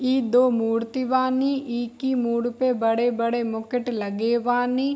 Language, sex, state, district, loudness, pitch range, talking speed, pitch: Hindi, female, Bihar, Darbhanga, -23 LUFS, 235-255 Hz, 145 wpm, 245 Hz